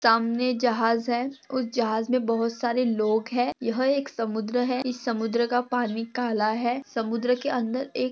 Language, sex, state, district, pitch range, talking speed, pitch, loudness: Hindi, female, Maharashtra, Pune, 230-250 Hz, 175 wpm, 240 Hz, -26 LUFS